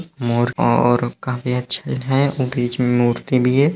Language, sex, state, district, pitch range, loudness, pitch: Hindi, male, Bihar, East Champaran, 120-135 Hz, -18 LUFS, 125 Hz